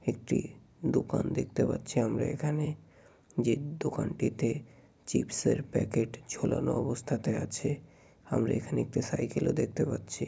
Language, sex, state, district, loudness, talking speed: Bengali, male, West Bengal, Kolkata, -32 LUFS, 120 wpm